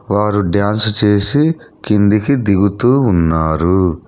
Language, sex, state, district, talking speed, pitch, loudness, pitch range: Telugu, male, Telangana, Hyderabad, 90 wpm, 105 Hz, -13 LUFS, 95-110 Hz